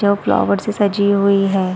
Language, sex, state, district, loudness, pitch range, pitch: Hindi, female, Chhattisgarh, Sarguja, -16 LUFS, 195-200 Hz, 200 Hz